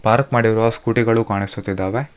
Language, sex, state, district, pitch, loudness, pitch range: Kannada, male, Karnataka, Bangalore, 115 Hz, -18 LUFS, 100-120 Hz